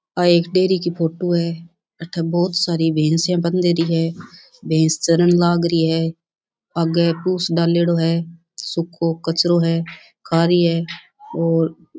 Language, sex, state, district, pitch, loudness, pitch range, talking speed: Rajasthani, female, Rajasthan, Churu, 170 Hz, -18 LUFS, 165-175 Hz, 135 wpm